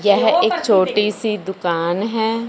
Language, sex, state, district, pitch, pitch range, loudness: Hindi, male, Punjab, Fazilka, 210 Hz, 190-220 Hz, -18 LUFS